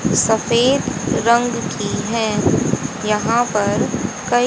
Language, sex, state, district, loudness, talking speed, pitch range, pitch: Hindi, female, Haryana, Charkhi Dadri, -18 LUFS, 95 wpm, 210-240 Hz, 225 Hz